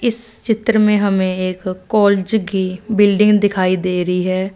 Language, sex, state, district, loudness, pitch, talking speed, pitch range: Hindi, female, Punjab, Fazilka, -16 LUFS, 200 Hz, 160 wpm, 185-210 Hz